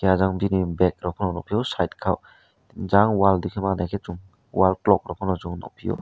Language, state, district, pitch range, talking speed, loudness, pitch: Kokborok, Tripura, West Tripura, 90-100 Hz, 180 wpm, -23 LUFS, 95 Hz